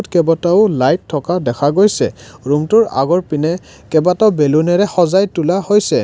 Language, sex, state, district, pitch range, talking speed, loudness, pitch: Assamese, male, Assam, Kamrup Metropolitan, 150-195 Hz, 120 wpm, -14 LUFS, 175 Hz